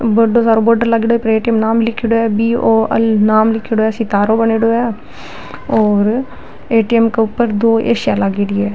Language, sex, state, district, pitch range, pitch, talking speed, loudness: Rajasthani, female, Rajasthan, Nagaur, 220-230 Hz, 225 Hz, 190 wpm, -13 LUFS